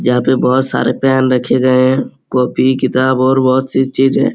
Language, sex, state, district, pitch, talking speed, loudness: Hindi, male, Uttar Pradesh, Muzaffarnagar, 130 Hz, 195 wpm, -13 LUFS